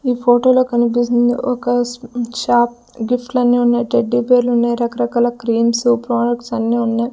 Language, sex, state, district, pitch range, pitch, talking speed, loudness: Telugu, female, Andhra Pradesh, Sri Satya Sai, 235-245 Hz, 240 Hz, 135 wpm, -16 LUFS